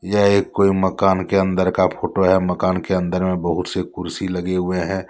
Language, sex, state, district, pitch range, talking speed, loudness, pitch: Hindi, male, Jharkhand, Deoghar, 90-95 Hz, 225 wpm, -19 LUFS, 95 Hz